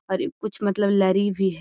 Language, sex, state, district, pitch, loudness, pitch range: Magahi, female, Bihar, Gaya, 200 Hz, -22 LUFS, 190-205 Hz